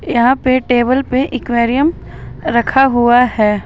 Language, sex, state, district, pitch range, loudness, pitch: Hindi, female, Jharkhand, Ranchi, 240-265 Hz, -13 LUFS, 255 Hz